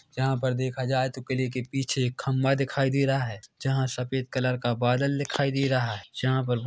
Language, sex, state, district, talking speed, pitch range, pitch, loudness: Hindi, male, Chhattisgarh, Korba, 225 wpm, 125-135 Hz, 130 Hz, -27 LUFS